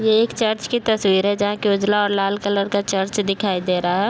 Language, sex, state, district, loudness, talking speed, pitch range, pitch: Hindi, female, Bihar, Bhagalpur, -19 LUFS, 265 wpm, 195-215 Hz, 205 Hz